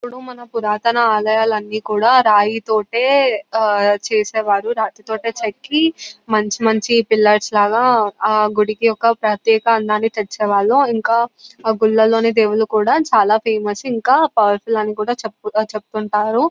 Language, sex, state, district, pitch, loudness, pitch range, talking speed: Telugu, female, Telangana, Nalgonda, 220 Hz, -16 LUFS, 210-230 Hz, 120 wpm